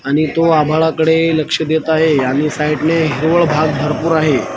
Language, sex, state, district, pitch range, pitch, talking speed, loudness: Marathi, male, Maharashtra, Washim, 150-160 Hz, 155 Hz, 160 wpm, -14 LUFS